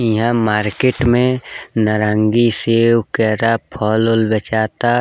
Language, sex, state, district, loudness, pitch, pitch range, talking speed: Bhojpuri, male, Bihar, East Champaran, -16 LUFS, 115 Hz, 110-120 Hz, 95 wpm